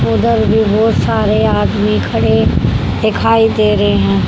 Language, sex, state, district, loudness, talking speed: Hindi, female, Haryana, Charkhi Dadri, -12 LUFS, 140 wpm